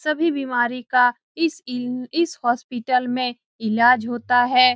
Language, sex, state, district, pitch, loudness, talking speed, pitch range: Hindi, female, Bihar, Saran, 250 Hz, -21 LUFS, 140 wpm, 240-260 Hz